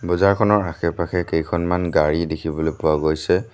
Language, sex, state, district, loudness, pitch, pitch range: Assamese, male, Assam, Sonitpur, -20 LUFS, 85 Hz, 80-90 Hz